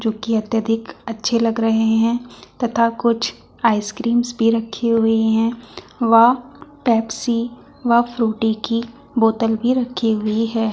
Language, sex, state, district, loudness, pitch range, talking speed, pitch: Hindi, female, Uttar Pradesh, Muzaffarnagar, -19 LUFS, 225-240 Hz, 135 wpm, 230 Hz